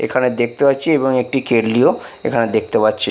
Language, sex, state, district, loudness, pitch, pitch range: Bengali, male, Bihar, Katihar, -16 LUFS, 125 Hz, 115-135 Hz